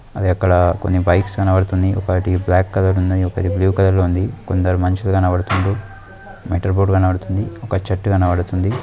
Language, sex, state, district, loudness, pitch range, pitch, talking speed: Telugu, male, Andhra Pradesh, Guntur, -17 LUFS, 90-95 Hz, 95 Hz, 150 wpm